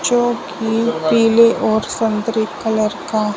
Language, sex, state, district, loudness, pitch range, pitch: Hindi, male, Punjab, Fazilka, -16 LUFS, 215-230 Hz, 220 Hz